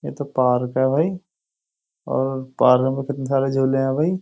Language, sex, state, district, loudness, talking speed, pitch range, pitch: Hindi, male, Uttar Pradesh, Jyotiba Phule Nagar, -20 LUFS, 185 wpm, 130-140 Hz, 135 Hz